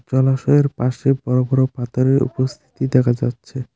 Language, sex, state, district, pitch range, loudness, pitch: Bengali, male, West Bengal, Cooch Behar, 125-135 Hz, -18 LUFS, 130 Hz